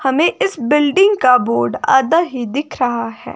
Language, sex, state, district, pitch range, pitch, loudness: Hindi, female, Himachal Pradesh, Shimla, 235-300 Hz, 265 Hz, -15 LUFS